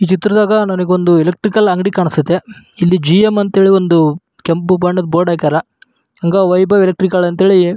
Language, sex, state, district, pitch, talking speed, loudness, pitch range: Kannada, male, Karnataka, Raichur, 185 Hz, 170 wpm, -12 LUFS, 175-195 Hz